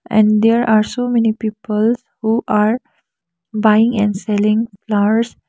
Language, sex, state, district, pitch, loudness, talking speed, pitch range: English, female, Sikkim, Gangtok, 220 Hz, -16 LUFS, 130 wpm, 210-230 Hz